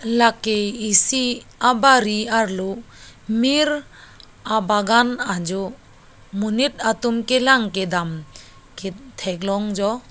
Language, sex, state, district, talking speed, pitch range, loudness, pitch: Karbi, female, Assam, Karbi Anglong, 85 wpm, 195-245 Hz, -19 LUFS, 220 Hz